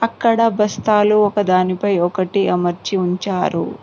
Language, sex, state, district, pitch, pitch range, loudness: Telugu, female, Telangana, Mahabubabad, 195 Hz, 185-210 Hz, -17 LUFS